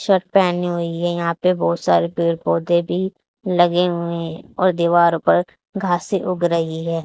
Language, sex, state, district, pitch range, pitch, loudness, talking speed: Hindi, female, Haryana, Charkhi Dadri, 170-180 Hz, 175 Hz, -19 LUFS, 180 wpm